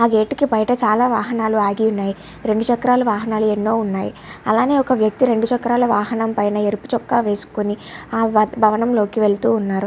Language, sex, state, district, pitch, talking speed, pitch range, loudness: Telugu, female, Andhra Pradesh, Guntur, 220 Hz, 165 wpm, 210-235 Hz, -18 LUFS